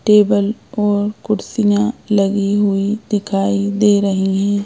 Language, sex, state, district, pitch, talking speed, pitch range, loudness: Hindi, female, Madhya Pradesh, Bhopal, 205 Hz, 115 wpm, 200-210 Hz, -16 LUFS